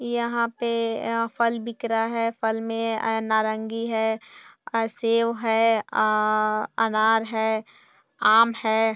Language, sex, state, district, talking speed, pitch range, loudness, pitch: Hindi, female, Bihar, Purnia, 125 wpm, 220-230 Hz, -24 LUFS, 225 Hz